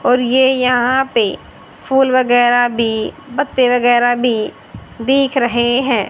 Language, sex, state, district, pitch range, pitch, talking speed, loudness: Hindi, male, Haryana, Charkhi Dadri, 240-260 Hz, 245 Hz, 130 wpm, -14 LUFS